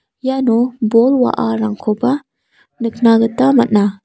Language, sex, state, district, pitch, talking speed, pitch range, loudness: Garo, female, Meghalaya, South Garo Hills, 230 Hz, 90 wpm, 225-255 Hz, -15 LUFS